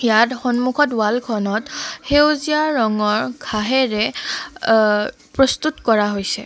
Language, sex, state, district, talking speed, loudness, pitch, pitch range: Assamese, female, Assam, Kamrup Metropolitan, 100 wpm, -18 LUFS, 235 Hz, 215-275 Hz